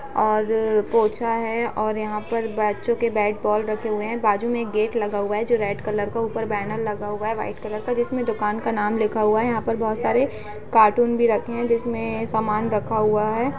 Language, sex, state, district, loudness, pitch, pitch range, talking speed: Hindi, female, Uttar Pradesh, Budaun, -22 LUFS, 220 Hz, 210-230 Hz, 230 wpm